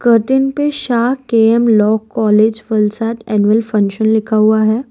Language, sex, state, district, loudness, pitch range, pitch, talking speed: Hindi, female, Gujarat, Valsad, -13 LUFS, 215-235 Hz, 220 Hz, 135 wpm